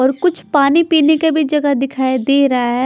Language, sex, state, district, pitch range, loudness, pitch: Hindi, female, Chhattisgarh, Raipur, 260-310 Hz, -14 LUFS, 280 Hz